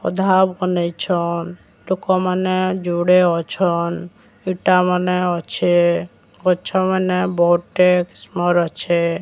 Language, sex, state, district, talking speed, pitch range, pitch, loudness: Odia, female, Odisha, Sambalpur, 90 wpm, 175-185 Hz, 180 Hz, -18 LUFS